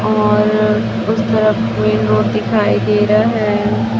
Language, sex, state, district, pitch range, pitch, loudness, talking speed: Hindi, male, Chhattisgarh, Raipur, 105-110 Hz, 110 Hz, -14 LUFS, 135 wpm